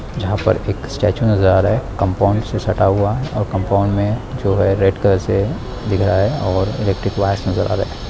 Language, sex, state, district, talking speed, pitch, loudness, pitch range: Hindi, male, Bihar, Bhagalpur, 220 wpm, 100 Hz, -17 LUFS, 95-110 Hz